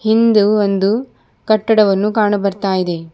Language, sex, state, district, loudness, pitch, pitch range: Kannada, female, Karnataka, Bidar, -15 LUFS, 210 Hz, 195-220 Hz